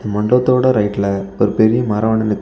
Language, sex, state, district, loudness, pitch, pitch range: Tamil, male, Tamil Nadu, Kanyakumari, -15 LUFS, 110 Hz, 105-120 Hz